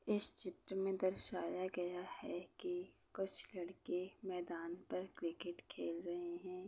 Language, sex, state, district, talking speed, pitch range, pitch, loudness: Hindi, female, Chhattisgarh, Bastar, 135 wpm, 175-190 Hz, 185 Hz, -42 LUFS